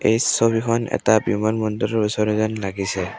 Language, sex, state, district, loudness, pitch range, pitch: Assamese, male, Assam, Kamrup Metropolitan, -20 LUFS, 105-115 Hz, 110 Hz